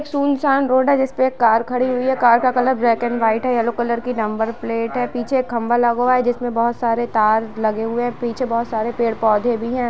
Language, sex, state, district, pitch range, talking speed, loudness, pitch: Hindi, female, Jharkhand, Jamtara, 230-250 Hz, 260 wpm, -18 LUFS, 240 Hz